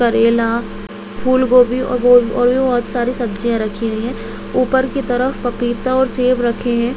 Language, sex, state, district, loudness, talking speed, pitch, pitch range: Hindi, female, Chhattisgarh, Bilaspur, -16 LUFS, 140 wpm, 245 Hz, 230-255 Hz